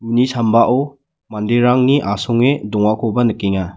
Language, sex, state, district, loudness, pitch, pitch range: Garo, male, Meghalaya, West Garo Hills, -15 LUFS, 115 Hz, 105-125 Hz